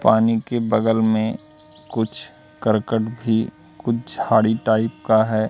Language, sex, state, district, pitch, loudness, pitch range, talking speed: Hindi, male, Madhya Pradesh, Katni, 110 Hz, -20 LUFS, 110-115 Hz, 130 wpm